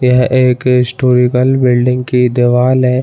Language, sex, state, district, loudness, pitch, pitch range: Hindi, male, Chhattisgarh, Bilaspur, -11 LUFS, 125 Hz, 125-130 Hz